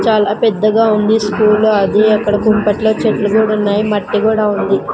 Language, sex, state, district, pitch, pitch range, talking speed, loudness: Telugu, female, Andhra Pradesh, Sri Satya Sai, 215 Hz, 210-220 Hz, 145 wpm, -13 LUFS